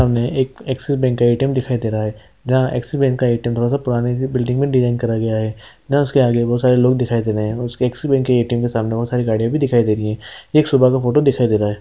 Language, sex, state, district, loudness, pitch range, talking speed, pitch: Hindi, male, Chhattisgarh, Sukma, -17 LUFS, 115-130 Hz, 335 wpm, 120 Hz